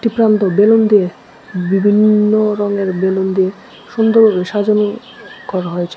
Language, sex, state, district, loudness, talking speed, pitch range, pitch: Bengali, male, Tripura, West Tripura, -14 LUFS, 110 wpm, 190-215 Hz, 205 Hz